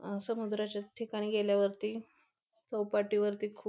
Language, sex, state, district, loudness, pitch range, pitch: Marathi, female, Maharashtra, Pune, -34 LUFS, 205-220 Hz, 210 Hz